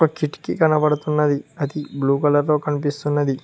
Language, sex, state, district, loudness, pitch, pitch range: Telugu, male, Telangana, Mahabubabad, -20 LUFS, 145 Hz, 145-150 Hz